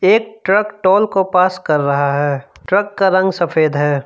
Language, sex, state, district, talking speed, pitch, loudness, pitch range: Hindi, male, Jharkhand, Palamu, 190 wpm, 185 Hz, -15 LUFS, 145-200 Hz